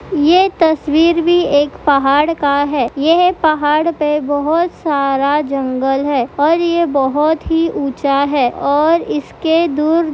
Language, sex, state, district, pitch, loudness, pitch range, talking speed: Hindi, female, Bihar, Madhepura, 300 Hz, -14 LUFS, 280-330 Hz, 135 wpm